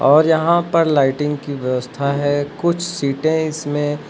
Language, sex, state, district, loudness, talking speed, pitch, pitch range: Hindi, male, Uttar Pradesh, Lucknow, -18 LUFS, 160 wpm, 145 Hz, 140-160 Hz